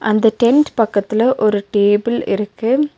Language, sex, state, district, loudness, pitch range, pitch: Tamil, female, Tamil Nadu, Nilgiris, -15 LUFS, 205-240 Hz, 220 Hz